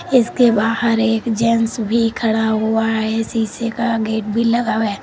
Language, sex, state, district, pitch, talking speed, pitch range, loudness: Hindi, female, Uttar Pradesh, Lalitpur, 225 Hz, 180 wpm, 220-230 Hz, -17 LUFS